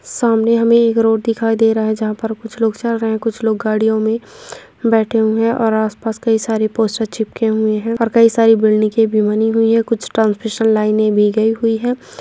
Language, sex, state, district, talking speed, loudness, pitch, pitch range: Hindi, female, Uttarakhand, Uttarkashi, 220 wpm, -15 LUFS, 225 Hz, 220-230 Hz